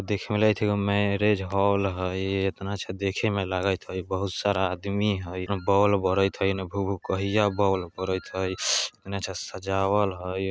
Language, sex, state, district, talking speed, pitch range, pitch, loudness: Bajjika, male, Bihar, Vaishali, 180 wpm, 95-100 Hz, 95 Hz, -26 LUFS